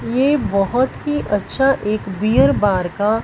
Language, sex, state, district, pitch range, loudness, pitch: Hindi, female, Punjab, Fazilka, 195-250 Hz, -17 LUFS, 210 Hz